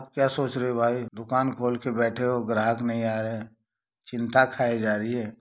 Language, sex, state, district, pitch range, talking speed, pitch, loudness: Hindi, male, Jharkhand, Sahebganj, 115-125 Hz, 200 wpm, 120 Hz, -26 LUFS